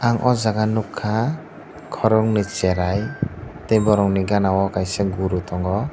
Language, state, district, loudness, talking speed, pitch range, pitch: Kokborok, Tripura, Dhalai, -20 LUFS, 140 wpm, 95-110 Hz, 105 Hz